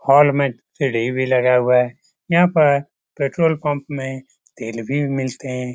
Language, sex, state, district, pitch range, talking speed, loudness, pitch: Hindi, male, Bihar, Lakhisarai, 125-145 Hz, 175 wpm, -19 LUFS, 135 Hz